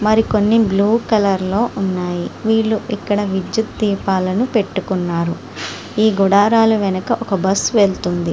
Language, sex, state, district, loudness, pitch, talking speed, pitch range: Telugu, female, Andhra Pradesh, Srikakulam, -17 LUFS, 200 Hz, 115 wpm, 190-220 Hz